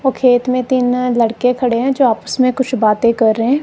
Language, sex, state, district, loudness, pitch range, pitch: Hindi, female, Punjab, Kapurthala, -14 LUFS, 235-255 Hz, 250 Hz